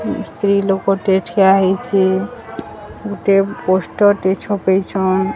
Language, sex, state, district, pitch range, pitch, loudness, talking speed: Odia, female, Odisha, Sambalpur, 190-200 Hz, 195 Hz, -16 LUFS, 90 wpm